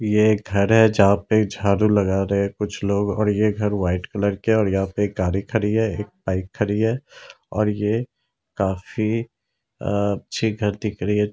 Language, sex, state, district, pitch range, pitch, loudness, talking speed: Hindi, male, Bihar, Lakhisarai, 100-110 Hz, 105 Hz, -21 LUFS, 195 wpm